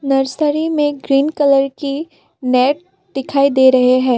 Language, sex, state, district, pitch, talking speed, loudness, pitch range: Hindi, female, Assam, Kamrup Metropolitan, 275 Hz, 145 wpm, -15 LUFS, 265-295 Hz